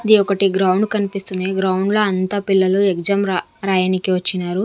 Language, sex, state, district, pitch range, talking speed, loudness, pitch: Telugu, female, Andhra Pradesh, Manyam, 185-200 Hz, 165 wpm, -17 LUFS, 195 Hz